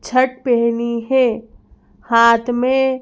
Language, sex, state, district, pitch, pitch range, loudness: Hindi, female, Madhya Pradesh, Bhopal, 245 Hz, 235-255 Hz, -16 LUFS